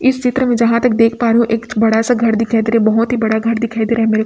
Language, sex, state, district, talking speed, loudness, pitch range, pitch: Hindi, female, Chhattisgarh, Raipur, 350 wpm, -14 LUFS, 225-235 Hz, 230 Hz